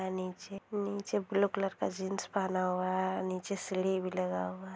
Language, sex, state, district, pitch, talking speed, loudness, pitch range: Hindi, female, Bihar, Sitamarhi, 190 Hz, 175 wpm, -34 LUFS, 185-195 Hz